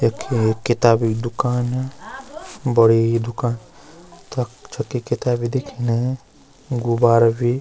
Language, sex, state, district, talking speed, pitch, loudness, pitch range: Garhwali, male, Uttarakhand, Uttarkashi, 95 wpm, 120 Hz, -20 LUFS, 115-130 Hz